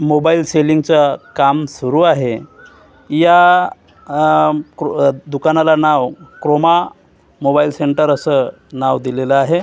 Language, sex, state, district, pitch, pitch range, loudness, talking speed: Marathi, male, Maharashtra, Gondia, 150 Hz, 140-160 Hz, -14 LUFS, 95 wpm